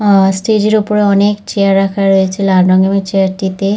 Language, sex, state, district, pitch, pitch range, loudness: Bengali, female, West Bengal, Dakshin Dinajpur, 195 Hz, 190-205 Hz, -11 LUFS